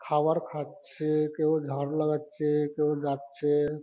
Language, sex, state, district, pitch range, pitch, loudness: Bengali, male, West Bengal, Malda, 145-155 Hz, 150 Hz, -29 LUFS